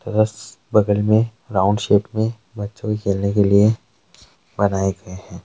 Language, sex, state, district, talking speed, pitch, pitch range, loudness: Hindi, male, Chhattisgarh, Sarguja, 165 wpm, 105 Hz, 100-110 Hz, -19 LUFS